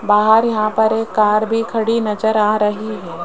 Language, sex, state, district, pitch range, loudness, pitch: Hindi, female, Rajasthan, Jaipur, 210-225 Hz, -16 LUFS, 215 Hz